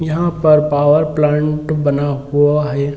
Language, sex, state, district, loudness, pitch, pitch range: Hindi, male, Bihar, Sitamarhi, -14 LUFS, 150 Hz, 145-155 Hz